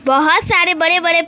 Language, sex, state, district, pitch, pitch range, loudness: Hindi, female, West Bengal, Alipurduar, 335 Hz, 315-345 Hz, -12 LUFS